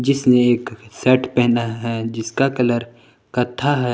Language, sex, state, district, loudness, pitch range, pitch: Hindi, male, Jharkhand, Palamu, -19 LUFS, 115-125 Hz, 120 Hz